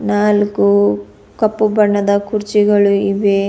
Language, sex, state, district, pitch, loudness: Kannada, female, Karnataka, Bidar, 200 Hz, -14 LUFS